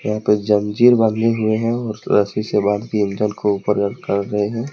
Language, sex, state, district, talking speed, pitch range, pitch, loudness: Hindi, male, Jharkhand, Deoghar, 215 wpm, 105-110 Hz, 105 Hz, -18 LUFS